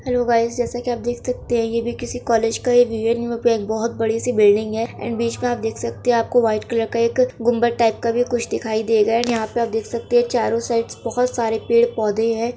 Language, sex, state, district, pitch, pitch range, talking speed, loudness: Hindi, female, Andhra Pradesh, Krishna, 235 Hz, 225-240 Hz, 255 wpm, -20 LUFS